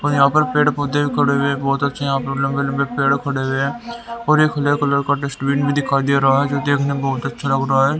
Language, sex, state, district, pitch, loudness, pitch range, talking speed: Hindi, male, Haryana, Rohtak, 140 Hz, -18 LUFS, 135-145 Hz, 270 wpm